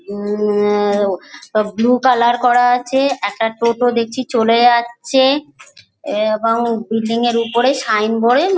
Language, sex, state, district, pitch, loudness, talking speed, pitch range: Bengali, female, West Bengal, Dakshin Dinajpur, 235 Hz, -15 LUFS, 125 wpm, 215-245 Hz